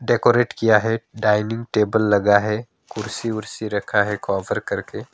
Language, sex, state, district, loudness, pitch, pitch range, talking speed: Hindi, male, West Bengal, Alipurduar, -20 LUFS, 110 Hz, 105-115 Hz, 150 wpm